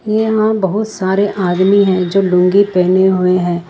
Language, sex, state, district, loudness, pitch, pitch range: Hindi, female, Jharkhand, Ranchi, -13 LUFS, 190 Hz, 180-205 Hz